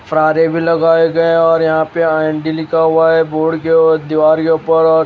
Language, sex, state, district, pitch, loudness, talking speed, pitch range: Hindi, male, Haryana, Rohtak, 160 Hz, -12 LUFS, 215 wpm, 160-165 Hz